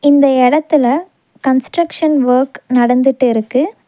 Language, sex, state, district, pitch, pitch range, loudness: Tamil, female, Tamil Nadu, Nilgiris, 265 Hz, 250-300 Hz, -13 LUFS